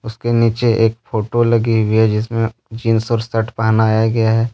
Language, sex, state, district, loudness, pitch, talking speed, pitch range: Hindi, male, Jharkhand, Deoghar, -16 LUFS, 115 Hz, 185 wpm, 110-115 Hz